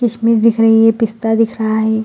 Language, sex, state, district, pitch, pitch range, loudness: Hindi, female, Bihar, Gaya, 225 Hz, 220-230 Hz, -13 LUFS